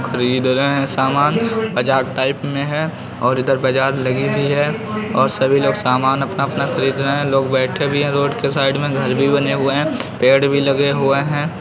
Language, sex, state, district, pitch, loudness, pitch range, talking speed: Hindi, male, Uttar Pradesh, Varanasi, 140 Hz, -17 LUFS, 135-145 Hz, 205 wpm